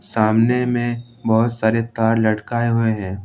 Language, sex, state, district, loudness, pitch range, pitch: Hindi, male, Jharkhand, Ranchi, -19 LUFS, 110-120 Hz, 115 Hz